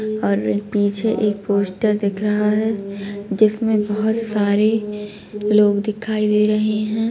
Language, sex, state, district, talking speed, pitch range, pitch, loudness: Kumaoni, female, Uttarakhand, Tehri Garhwal, 125 wpm, 205-215 Hz, 210 Hz, -19 LUFS